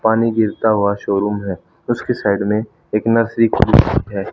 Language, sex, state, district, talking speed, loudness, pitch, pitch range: Hindi, male, Haryana, Rohtak, 150 wpm, -17 LUFS, 110 Hz, 100-115 Hz